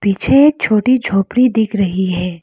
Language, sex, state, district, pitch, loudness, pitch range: Hindi, female, Arunachal Pradesh, Lower Dibang Valley, 205 Hz, -13 LUFS, 190-250 Hz